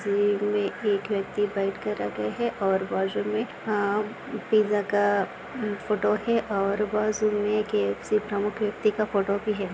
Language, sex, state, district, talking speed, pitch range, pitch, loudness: Hindi, female, Maharashtra, Aurangabad, 155 wpm, 195-215 Hz, 205 Hz, -26 LUFS